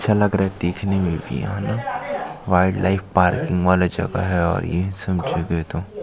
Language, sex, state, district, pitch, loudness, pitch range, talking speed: Hindi, male, Chhattisgarh, Jashpur, 90 Hz, -21 LUFS, 85-100 Hz, 190 wpm